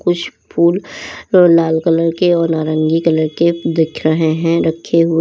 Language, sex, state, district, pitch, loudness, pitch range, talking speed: Hindi, female, Uttar Pradesh, Lalitpur, 165 Hz, -14 LUFS, 160-170 Hz, 160 wpm